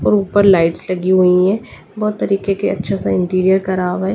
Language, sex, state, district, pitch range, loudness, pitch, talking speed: Hindi, female, Delhi, New Delhi, 180-195 Hz, -15 LUFS, 190 Hz, 215 wpm